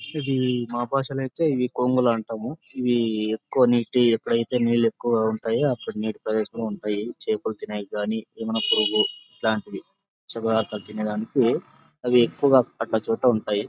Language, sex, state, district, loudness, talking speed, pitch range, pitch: Telugu, male, Andhra Pradesh, Anantapur, -24 LUFS, 125 wpm, 110-125 Hz, 115 Hz